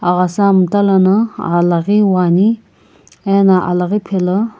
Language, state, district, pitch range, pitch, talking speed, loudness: Sumi, Nagaland, Kohima, 180-205 Hz, 190 Hz, 90 wpm, -13 LUFS